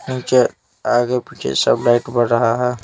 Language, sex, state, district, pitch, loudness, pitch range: Hindi, male, Bihar, Patna, 120 Hz, -17 LUFS, 120-125 Hz